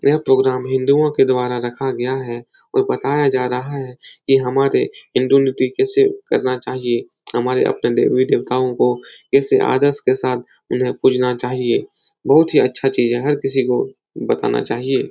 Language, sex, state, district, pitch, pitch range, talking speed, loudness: Hindi, male, Uttar Pradesh, Etah, 130 Hz, 125-145 Hz, 165 wpm, -17 LUFS